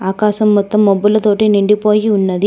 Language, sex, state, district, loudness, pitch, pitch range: Telugu, female, Telangana, Hyderabad, -12 LUFS, 210 Hz, 200-210 Hz